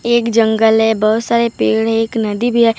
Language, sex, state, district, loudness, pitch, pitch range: Hindi, female, Maharashtra, Gondia, -14 LUFS, 225 Hz, 220-235 Hz